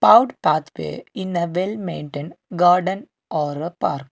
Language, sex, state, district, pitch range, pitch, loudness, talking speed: English, male, Karnataka, Bangalore, 155-185 Hz, 175 Hz, -21 LUFS, 130 wpm